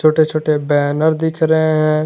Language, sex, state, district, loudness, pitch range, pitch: Hindi, male, Jharkhand, Garhwa, -15 LUFS, 155-160 Hz, 155 Hz